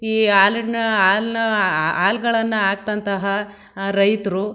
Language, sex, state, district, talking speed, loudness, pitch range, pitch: Kannada, female, Karnataka, Mysore, 65 wpm, -18 LUFS, 195-220 Hz, 205 Hz